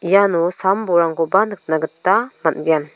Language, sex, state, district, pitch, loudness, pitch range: Garo, female, Meghalaya, South Garo Hills, 180 Hz, -18 LUFS, 165-195 Hz